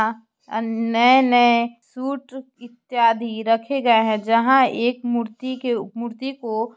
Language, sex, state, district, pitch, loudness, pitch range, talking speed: Hindi, male, Bihar, Muzaffarpur, 235 Hz, -20 LUFS, 225-255 Hz, 125 wpm